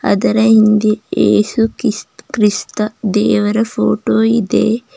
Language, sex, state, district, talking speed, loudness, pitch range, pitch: Kannada, female, Karnataka, Bidar, 95 wpm, -14 LUFS, 210-225 Hz, 215 Hz